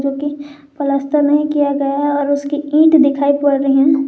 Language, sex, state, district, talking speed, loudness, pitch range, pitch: Hindi, female, Jharkhand, Garhwa, 175 wpm, -15 LUFS, 280-290 Hz, 285 Hz